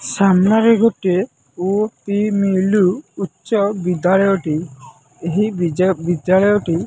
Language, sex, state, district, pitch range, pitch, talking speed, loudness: Odia, male, Odisha, Nuapada, 180-205 Hz, 190 Hz, 95 wpm, -16 LUFS